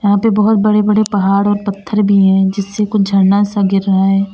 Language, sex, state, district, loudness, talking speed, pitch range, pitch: Hindi, female, Uttar Pradesh, Lalitpur, -13 LUFS, 235 wpm, 195-210 Hz, 200 Hz